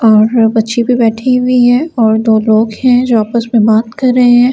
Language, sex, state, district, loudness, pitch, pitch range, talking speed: Hindi, female, Delhi, New Delhi, -10 LUFS, 235 Hz, 220-250 Hz, 250 wpm